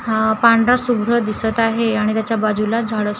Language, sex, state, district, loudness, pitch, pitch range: Marathi, female, Maharashtra, Gondia, -17 LUFS, 225 Hz, 215-230 Hz